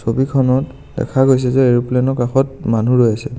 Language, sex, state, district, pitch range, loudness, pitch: Assamese, male, Assam, Kamrup Metropolitan, 120-135 Hz, -15 LUFS, 130 Hz